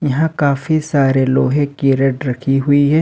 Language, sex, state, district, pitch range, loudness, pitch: Hindi, male, Jharkhand, Ranchi, 135-145 Hz, -15 LUFS, 140 Hz